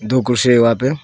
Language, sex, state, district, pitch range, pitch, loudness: Hindi, male, Arunachal Pradesh, Longding, 120-130 Hz, 125 Hz, -14 LUFS